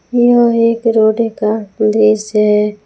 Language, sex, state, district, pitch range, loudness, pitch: Hindi, female, Jharkhand, Palamu, 210-230 Hz, -12 LUFS, 220 Hz